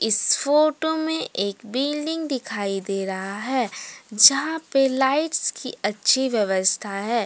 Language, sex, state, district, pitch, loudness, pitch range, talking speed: Hindi, female, Jharkhand, Deoghar, 240 Hz, -22 LUFS, 205-290 Hz, 130 wpm